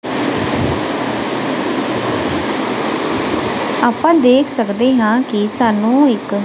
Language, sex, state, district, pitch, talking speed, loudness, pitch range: Punjabi, female, Punjab, Kapurthala, 255 Hz, 65 wpm, -15 LUFS, 230-305 Hz